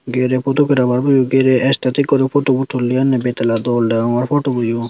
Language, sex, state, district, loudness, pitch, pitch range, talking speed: Chakma, female, Tripura, Unakoti, -15 LUFS, 130 Hz, 125-135 Hz, 145 wpm